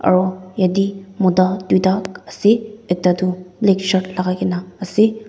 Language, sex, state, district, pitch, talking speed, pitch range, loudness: Nagamese, female, Nagaland, Dimapur, 185 Hz, 125 wpm, 185-195 Hz, -18 LUFS